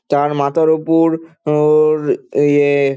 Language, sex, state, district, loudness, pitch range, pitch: Bengali, male, West Bengal, Dakshin Dinajpur, -14 LUFS, 145-160 Hz, 150 Hz